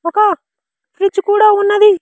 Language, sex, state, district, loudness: Telugu, male, Andhra Pradesh, Sri Satya Sai, -12 LUFS